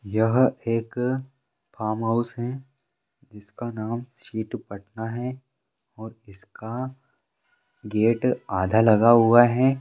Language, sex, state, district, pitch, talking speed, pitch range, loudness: Hindi, male, Bihar, Vaishali, 115 Hz, 105 wpm, 110-125 Hz, -23 LUFS